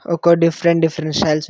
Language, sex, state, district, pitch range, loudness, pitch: Telugu, male, Andhra Pradesh, Anantapur, 155-170 Hz, -16 LUFS, 165 Hz